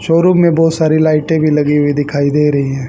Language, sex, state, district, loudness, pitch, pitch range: Hindi, female, Haryana, Charkhi Dadri, -12 LUFS, 150 Hz, 145-165 Hz